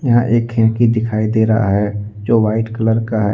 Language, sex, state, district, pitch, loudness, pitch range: Hindi, male, Jharkhand, Deoghar, 110 Hz, -15 LUFS, 110-115 Hz